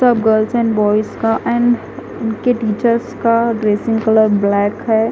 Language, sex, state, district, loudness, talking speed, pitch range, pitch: Hindi, female, Punjab, Fazilka, -15 LUFS, 150 wpm, 215-235 Hz, 225 Hz